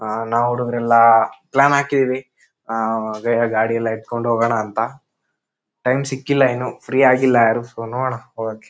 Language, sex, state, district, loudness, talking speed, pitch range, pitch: Kannada, male, Karnataka, Shimoga, -18 LUFS, 145 wpm, 115-130 Hz, 120 Hz